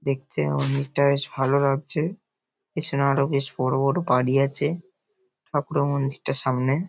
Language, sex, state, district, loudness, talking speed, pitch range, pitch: Bengali, male, West Bengal, Paschim Medinipur, -24 LUFS, 130 wpm, 135-150 Hz, 140 Hz